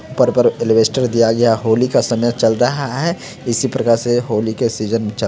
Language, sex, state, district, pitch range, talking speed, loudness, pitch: Hindi, male, Bihar, Samastipur, 110-125 Hz, 195 wpm, -16 LUFS, 115 Hz